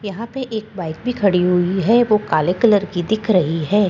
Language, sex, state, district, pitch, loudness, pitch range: Hindi, female, Bihar, Katihar, 200 Hz, -18 LUFS, 180-220 Hz